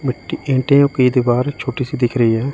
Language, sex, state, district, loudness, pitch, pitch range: Hindi, male, Chandigarh, Chandigarh, -16 LUFS, 130 Hz, 120-135 Hz